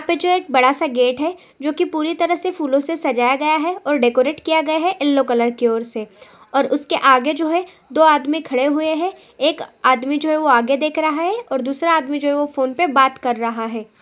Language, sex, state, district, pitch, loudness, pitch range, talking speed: Hindi, female, Chhattisgarh, Sukma, 290 Hz, -18 LUFS, 260-320 Hz, 240 wpm